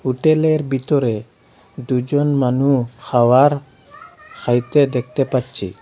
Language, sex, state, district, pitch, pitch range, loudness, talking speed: Bengali, male, Assam, Hailakandi, 130 Hz, 125-145 Hz, -17 LUFS, 80 wpm